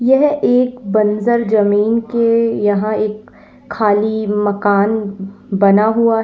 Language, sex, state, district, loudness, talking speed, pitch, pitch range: Hindi, female, Uttar Pradesh, Lalitpur, -15 LUFS, 115 wpm, 215 Hz, 205-230 Hz